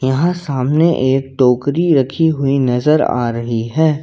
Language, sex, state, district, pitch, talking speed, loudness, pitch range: Hindi, male, Jharkhand, Ranchi, 135 Hz, 150 wpm, -15 LUFS, 125-155 Hz